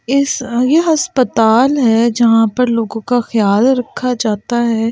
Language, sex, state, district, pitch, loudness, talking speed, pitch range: Hindi, female, Delhi, New Delhi, 240 Hz, -13 LUFS, 145 wpm, 225-255 Hz